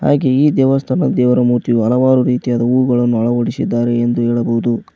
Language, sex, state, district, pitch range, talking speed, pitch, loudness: Kannada, male, Karnataka, Koppal, 120-130 Hz, 135 wpm, 120 Hz, -14 LUFS